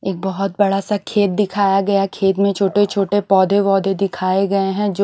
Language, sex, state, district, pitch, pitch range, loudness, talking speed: Hindi, female, Odisha, Nuapada, 195 Hz, 195-200 Hz, -17 LUFS, 200 wpm